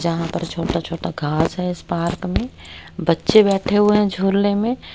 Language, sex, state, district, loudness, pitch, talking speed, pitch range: Hindi, female, Haryana, Rohtak, -19 LUFS, 170 Hz, 180 wpm, 165-200 Hz